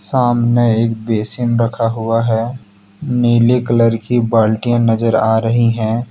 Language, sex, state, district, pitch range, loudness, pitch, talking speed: Hindi, male, Jharkhand, Deoghar, 110-120 Hz, -15 LUFS, 115 Hz, 140 wpm